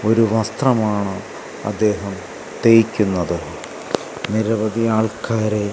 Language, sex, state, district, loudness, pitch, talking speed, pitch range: Malayalam, male, Kerala, Kasaragod, -19 LUFS, 110 Hz, 65 wpm, 100-110 Hz